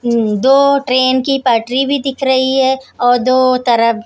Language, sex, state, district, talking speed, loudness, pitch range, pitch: Hindi, female, Maharashtra, Mumbai Suburban, 180 wpm, -13 LUFS, 245-270 Hz, 255 Hz